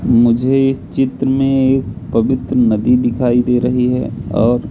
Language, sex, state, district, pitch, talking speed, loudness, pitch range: Hindi, male, Madhya Pradesh, Katni, 125 Hz, 155 wpm, -15 LUFS, 120-130 Hz